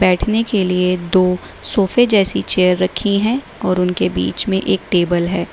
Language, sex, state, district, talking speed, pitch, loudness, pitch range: Hindi, female, Uttar Pradesh, Lalitpur, 175 wpm, 185 Hz, -16 LUFS, 180-205 Hz